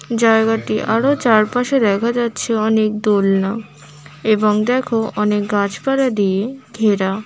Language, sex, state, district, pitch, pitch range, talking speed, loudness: Bengali, female, West Bengal, Paschim Medinipur, 220 Hz, 205-235 Hz, 115 wpm, -17 LUFS